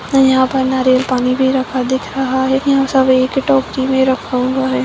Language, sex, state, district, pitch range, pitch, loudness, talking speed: Kumaoni, female, Uttarakhand, Uttarkashi, 260-265 Hz, 260 Hz, -14 LUFS, 210 wpm